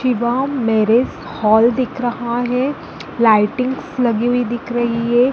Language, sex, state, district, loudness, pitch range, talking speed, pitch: Hindi, female, Chhattisgarh, Balrampur, -17 LUFS, 235-255 Hz, 135 wpm, 240 Hz